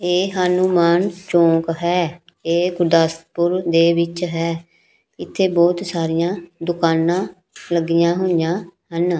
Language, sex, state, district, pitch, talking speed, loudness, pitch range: Punjabi, female, Punjab, Pathankot, 170 Hz, 105 wpm, -18 LUFS, 170-180 Hz